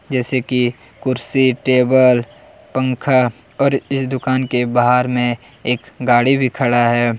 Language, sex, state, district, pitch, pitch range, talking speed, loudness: Hindi, male, Jharkhand, Deoghar, 125 Hz, 120-130 Hz, 135 wpm, -16 LUFS